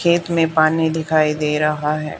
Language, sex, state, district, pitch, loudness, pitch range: Hindi, female, Haryana, Charkhi Dadri, 155 Hz, -18 LUFS, 150-160 Hz